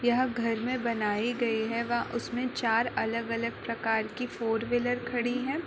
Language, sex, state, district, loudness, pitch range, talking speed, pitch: Hindi, female, Chhattisgarh, Korba, -30 LUFS, 225-245 Hz, 180 wpm, 235 Hz